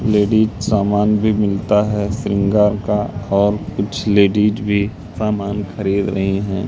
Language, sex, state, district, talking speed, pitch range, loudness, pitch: Hindi, male, Madhya Pradesh, Katni, 135 wpm, 100-105 Hz, -17 LUFS, 105 Hz